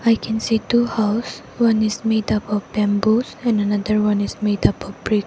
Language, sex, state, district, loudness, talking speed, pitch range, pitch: English, female, Arunachal Pradesh, Lower Dibang Valley, -20 LUFS, 215 wpm, 210-225 Hz, 215 Hz